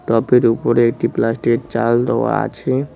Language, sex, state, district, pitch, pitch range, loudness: Bengali, male, West Bengal, Cooch Behar, 120 Hz, 115-125 Hz, -16 LUFS